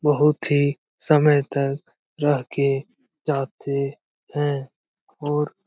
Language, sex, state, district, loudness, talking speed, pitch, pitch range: Hindi, male, Bihar, Jamui, -23 LUFS, 105 wpm, 145 Hz, 140-150 Hz